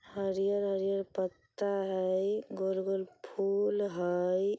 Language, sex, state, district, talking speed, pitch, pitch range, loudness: Bajjika, female, Bihar, Vaishali, 80 wpm, 195 Hz, 185-200 Hz, -33 LUFS